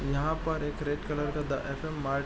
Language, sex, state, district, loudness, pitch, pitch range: Hindi, male, Bihar, East Champaran, -32 LUFS, 145 Hz, 140-155 Hz